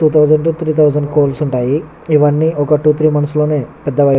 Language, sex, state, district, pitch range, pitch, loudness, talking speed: Telugu, male, Telangana, Nalgonda, 145-155 Hz, 150 Hz, -13 LUFS, 215 wpm